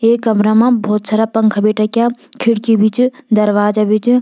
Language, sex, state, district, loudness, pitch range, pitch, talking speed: Garhwali, female, Uttarakhand, Tehri Garhwal, -13 LUFS, 215-235 Hz, 220 Hz, 200 wpm